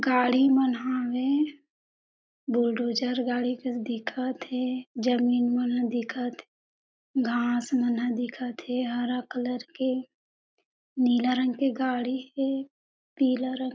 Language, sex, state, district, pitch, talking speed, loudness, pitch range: Chhattisgarhi, female, Chhattisgarh, Jashpur, 250 Hz, 120 wpm, -27 LUFS, 245-260 Hz